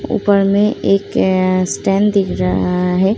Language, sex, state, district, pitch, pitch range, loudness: Hindi, female, Uttar Pradesh, Muzaffarnagar, 195 Hz, 185-200 Hz, -15 LUFS